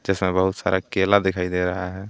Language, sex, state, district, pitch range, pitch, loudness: Hindi, male, Jharkhand, Garhwa, 90-95 Hz, 95 Hz, -21 LUFS